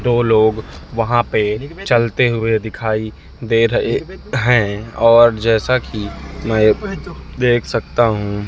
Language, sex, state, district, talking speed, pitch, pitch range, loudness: Hindi, male, Madhya Pradesh, Katni, 120 wpm, 115 Hz, 110-120 Hz, -16 LUFS